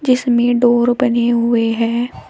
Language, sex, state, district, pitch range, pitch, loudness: Hindi, female, Uttar Pradesh, Shamli, 235-245 Hz, 240 Hz, -15 LUFS